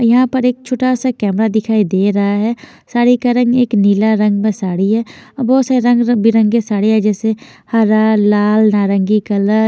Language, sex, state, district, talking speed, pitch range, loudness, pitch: Hindi, female, Chandigarh, Chandigarh, 185 wpm, 210-245 Hz, -13 LUFS, 220 Hz